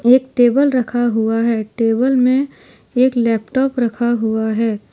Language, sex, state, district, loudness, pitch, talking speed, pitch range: Hindi, female, Jharkhand, Deoghar, -16 LUFS, 240 Hz, 160 wpm, 225-255 Hz